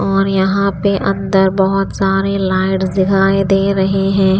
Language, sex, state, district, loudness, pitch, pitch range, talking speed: Hindi, female, Punjab, Pathankot, -14 LUFS, 195 Hz, 190-195 Hz, 150 wpm